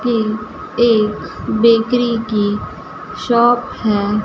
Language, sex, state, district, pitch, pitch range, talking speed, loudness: Hindi, female, Madhya Pradesh, Dhar, 215 Hz, 210-235 Hz, 85 wpm, -16 LUFS